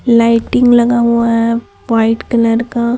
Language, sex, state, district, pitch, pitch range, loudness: Hindi, female, Chhattisgarh, Raipur, 235 Hz, 230-240 Hz, -12 LUFS